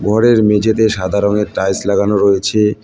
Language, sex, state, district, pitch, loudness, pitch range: Bengali, male, West Bengal, Cooch Behar, 105 Hz, -13 LUFS, 100-110 Hz